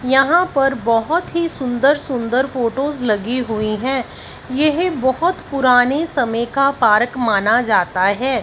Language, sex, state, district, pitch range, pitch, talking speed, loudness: Hindi, female, Punjab, Fazilka, 235-280 Hz, 260 Hz, 135 wpm, -17 LUFS